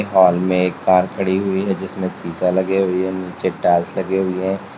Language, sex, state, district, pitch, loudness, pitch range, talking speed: Hindi, male, Uttar Pradesh, Lalitpur, 95 Hz, -18 LUFS, 90-95 Hz, 200 wpm